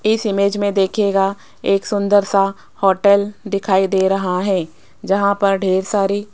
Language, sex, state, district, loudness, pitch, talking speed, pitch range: Hindi, female, Rajasthan, Jaipur, -17 LUFS, 195 Hz, 160 wpm, 195-200 Hz